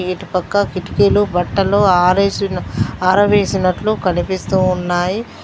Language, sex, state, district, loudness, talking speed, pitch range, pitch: Telugu, female, Telangana, Mahabubabad, -16 LUFS, 90 wpm, 180-200 Hz, 190 Hz